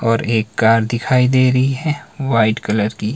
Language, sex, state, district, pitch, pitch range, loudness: Hindi, male, Himachal Pradesh, Shimla, 115 Hz, 110-130 Hz, -16 LUFS